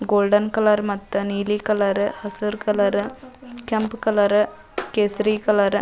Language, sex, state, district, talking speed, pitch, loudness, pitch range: Kannada, female, Karnataka, Dharwad, 125 wpm, 210 Hz, -21 LUFS, 205-220 Hz